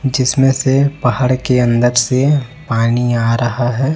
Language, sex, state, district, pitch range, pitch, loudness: Hindi, male, Chhattisgarh, Raipur, 120-135 Hz, 125 Hz, -14 LUFS